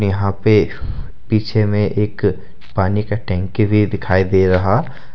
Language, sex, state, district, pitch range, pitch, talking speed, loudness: Hindi, male, Jharkhand, Deoghar, 95-105 Hz, 105 Hz, 140 wpm, -17 LUFS